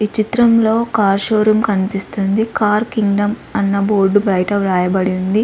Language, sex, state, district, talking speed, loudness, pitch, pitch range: Telugu, female, Andhra Pradesh, Sri Satya Sai, 155 wpm, -15 LUFS, 205 Hz, 195-220 Hz